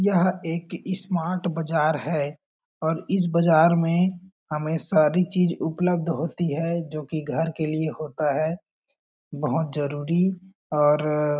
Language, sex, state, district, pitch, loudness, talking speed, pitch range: Hindi, male, Chhattisgarh, Balrampur, 165 Hz, -24 LUFS, 135 wpm, 155-180 Hz